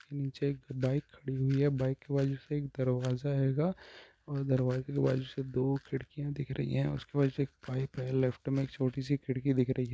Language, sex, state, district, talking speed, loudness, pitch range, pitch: Hindi, male, Uttarakhand, Tehri Garhwal, 230 wpm, -33 LUFS, 130-140 Hz, 135 Hz